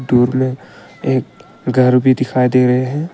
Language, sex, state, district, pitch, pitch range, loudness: Hindi, male, Arunachal Pradesh, Longding, 130 Hz, 125-130 Hz, -15 LUFS